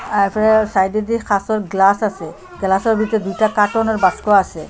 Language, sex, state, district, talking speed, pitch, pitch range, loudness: Bengali, female, Assam, Hailakandi, 155 wpm, 210 Hz, 195-220 Hz, -16 LUFS